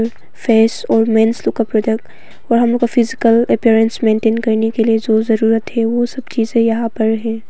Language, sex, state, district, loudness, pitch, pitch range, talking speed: Hindi, female, Arunachal Pradesh, Papum Pare, -15 LUFS, 225 Hz, 220-230 Hz, 200 wpm